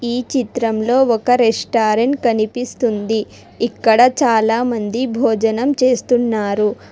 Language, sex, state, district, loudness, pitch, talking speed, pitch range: Telugu, female, Telangana, Hyderabad, -16 LUFS, 235 Hz, 85 wpm, 220-250 Hz